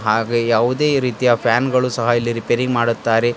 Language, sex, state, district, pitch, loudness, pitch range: Kannada, male, Karnataka, Bidar, 120 Hz, -17 LUFS, 115-125 Hz